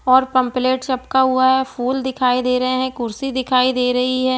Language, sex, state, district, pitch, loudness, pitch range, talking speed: Hindi, female, Bihar, East Champaran, 255 Hz, -18 LUFS, 255-260 Hz, 220 wpm